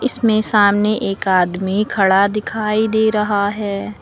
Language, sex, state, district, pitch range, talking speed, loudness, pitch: Hindi, female, Uttar Pradesh, Lucknow, 200-215 Hz, 135 wpm, -16 LUFS, 210 Hz